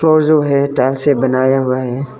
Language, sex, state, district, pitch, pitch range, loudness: Hindi, male, Arunachal Pradesh, Lower Dibang Valley, 135 Hz, 130-145 Hz, -14 LUFS